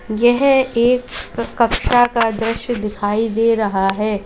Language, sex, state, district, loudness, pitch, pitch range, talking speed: Hindi, female, Uttar Pradesh, Lalitpur, -17 LUFS, 225 Hz, 215-240 Hz, 125 wpm